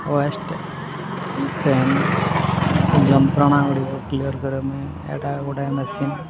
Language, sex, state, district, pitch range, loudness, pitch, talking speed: Odia, male, Odisha, Sambalpur, 140-170 Hz, -21 LUFS, 145 Hz, 75 wpm